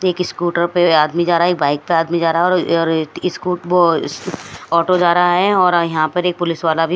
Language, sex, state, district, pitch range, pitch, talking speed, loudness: Hindi, female, Bihar, West Champaran, 165-180 Hz, 170 Hz, 285 wpm, -16 LUFS